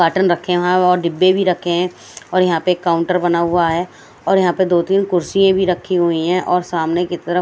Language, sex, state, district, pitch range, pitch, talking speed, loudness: Hindi, female, Bihar, West Champaran, 170-185 Hz, 180 Hz, 235 wpm, -16 LUFS